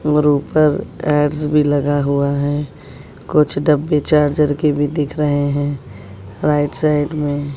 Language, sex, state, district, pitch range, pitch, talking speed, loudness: Hindi, female, Bihar, West Champaran, 145-150 Hz, 145 Hz, 145 wpm, -17 LUFS